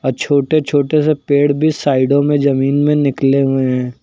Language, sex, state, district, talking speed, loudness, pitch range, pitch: Hindi, male, Uttar Pradesh, Lucknow, 195 wpm, -14 LUFS, 135-145 Hz, 140 Hz